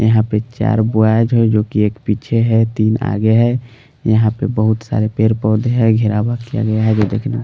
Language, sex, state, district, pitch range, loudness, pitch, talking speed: Hindi, male, Delhi, New Delhi, 110-115 Hz, -15 LUFS, 110 Hz, 210 wpm